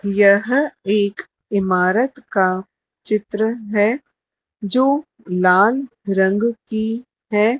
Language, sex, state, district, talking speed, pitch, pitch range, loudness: Hindi, female, Madhya Pradesh, Dhar, 85 wpm, 215 Hz, 200-235 Hz, -18 LUFS